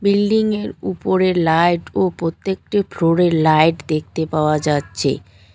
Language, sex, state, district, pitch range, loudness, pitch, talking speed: Bengali, female, West Bengal, Cooch Behar, 155-190 Hz, -18 LUFS, 165 Hz, 130 wpm